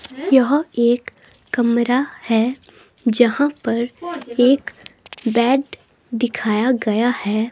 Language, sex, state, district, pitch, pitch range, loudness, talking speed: Hindi, female, Himachal Pradesh, Shimla, 245 Hz, 235-275 Hz, -18 LUFS, 90 wpm